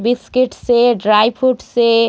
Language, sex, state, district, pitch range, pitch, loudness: Hindi, female, Uttar Pradesh, Deoria, 230-250 Hz, 240 Hz, -14 LUFS